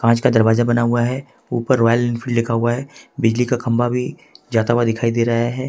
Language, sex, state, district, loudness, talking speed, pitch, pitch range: Hindi, male, Jharkhand, Ranchi, -18 LUFS, 230 wpm, 120 Hz, 115-125 Hz